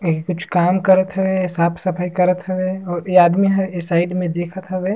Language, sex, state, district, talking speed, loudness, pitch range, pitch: Surgujia, male, Chhattisgarh, Sarguja, 180 wpm, -18 LUFS, 175-190 Hz, 180 Hz